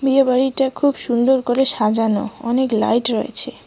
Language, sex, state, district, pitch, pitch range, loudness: Bengali, female, West Bengal, Cooch Behar, 255 Hz, 230-265 Hz, -17 LUFS